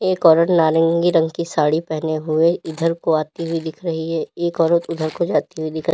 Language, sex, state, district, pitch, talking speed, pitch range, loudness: Hindi, female, Uttar Pradesh, Lalitpur, 165 Hz, 220 wpm, 160-170 Hz, -19 LUFS